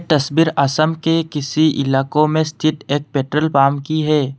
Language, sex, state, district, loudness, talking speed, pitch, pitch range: Hindi, male, Assam, Kamrup Metropolitan, -17 LUFS, 165 wpm, 150 Hz, 140-155 Hz